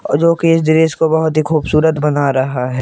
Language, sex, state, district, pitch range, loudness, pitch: Hindi, male, Jharkhand, Ranchi, 145-160 Hz, -14 LUFS, 155 Hz